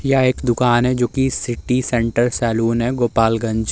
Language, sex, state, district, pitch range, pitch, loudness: Hindi, male, Uttar Pradesh, Muzaffarnagar, 115-125 Hz, 120 Hz, -18 LUFS